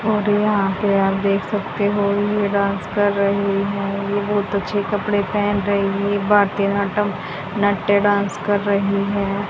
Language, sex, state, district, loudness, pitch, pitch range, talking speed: Hindi, female, Haryana, Jhajjar, -19 LUFS, 200 Hz, 200-205 Hz, 165 wpm